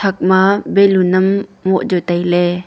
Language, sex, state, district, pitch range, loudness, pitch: Wancho, female, Arunachal Pradesh, Longding, 180-195 Hz, -14 LUFS, 190 Hz